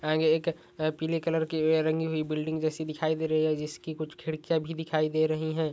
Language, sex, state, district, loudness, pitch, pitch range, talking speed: Hindi, male, Rajasthan, Churu, -29 LUFS, 155 Hz, 155-160 Hz, 240 wpm